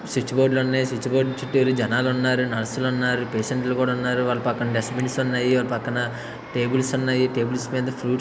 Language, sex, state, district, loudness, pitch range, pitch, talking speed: Telugu, male, Andhra Pradesh, Visakhapatnam, -23 LUFS, 120-130 Hz, 125 Hz, 185 wpm